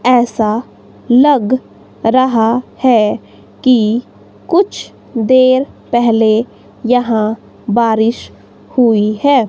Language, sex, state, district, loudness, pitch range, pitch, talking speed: Hindi, female, Himachal Pradesh, Shimla, -13 LUFS, 225-255 Hz, 240 Hz, 75 wpm